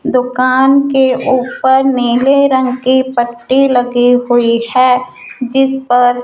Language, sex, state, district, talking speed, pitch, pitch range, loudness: Hindi, female, Rajasthan, Jaipur, 125 wpm, 255 Hz, 245-265 Hz, -11 LUFS